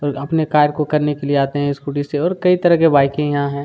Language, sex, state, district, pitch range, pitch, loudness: Hindi, male, Chhattisgarh, Kabirdham, 140-155 Hz, 145 Hz, -17 LUFS